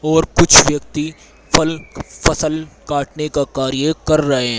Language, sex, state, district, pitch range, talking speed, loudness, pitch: Hindi, male, Haryana, Rohtak, 145-160 Hz, 155 wpm, -15 LUFS, 150 Hz